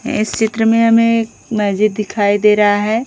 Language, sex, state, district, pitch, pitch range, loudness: Hindi, female, Odisha, Khordha, 215 Hz, 210-225 Hz, -14 LUFS